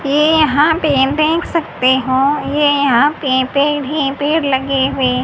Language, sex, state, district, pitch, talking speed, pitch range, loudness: Hindi, female, Haryana, Jhajjar, 285 Hz, 150 wpm, 265-300 Hz, -14 LUFS